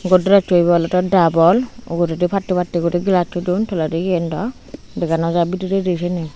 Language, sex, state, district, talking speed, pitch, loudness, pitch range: Chakma, female, Tripura, Unakoti, 180 wpm, 180 Hz, -17 LUFS, 170-185 Hz